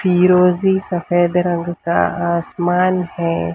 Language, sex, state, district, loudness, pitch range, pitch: Hindi, female, Maharashtra, Mumbai Suburban, -16 LUFS, 170-180 Hz, 175 Hz